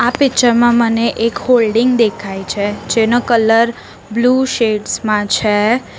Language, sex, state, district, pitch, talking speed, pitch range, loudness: Gujarati, female, Gujarat, Valsad, 230 Hz, 130 wpm, 215-240 Hz, -14 LUFS